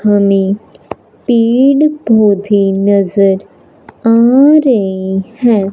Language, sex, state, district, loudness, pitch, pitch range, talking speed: Hindi, male, Punjab, Fazilka, -11 LUFS, 210 Hz, 195-240 Hz, 75 wpm